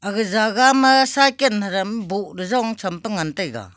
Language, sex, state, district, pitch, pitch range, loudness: Wancho, female, Arunachal Pradesh, Longding, 215 Hz, 190-255 Hz, -18 LUFS